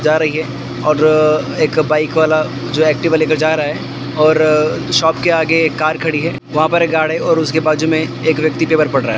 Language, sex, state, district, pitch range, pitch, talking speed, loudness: Hindi, male, Maharashtra, Gondia, 155-160 Hz, 155 Hz, 235 wpm, -14 LUFS